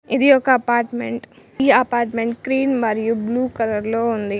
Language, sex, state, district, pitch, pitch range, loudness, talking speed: Telugu, female, Telangana, Mahabubabad, 240 Hz, 230-255 Hz, -19 LUFS, 150 wpm